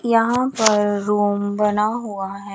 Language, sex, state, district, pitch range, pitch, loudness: Hindi, female, Chandigarh, Chandigarh, 205-225 Hz, 210 Hz, -19 LUFS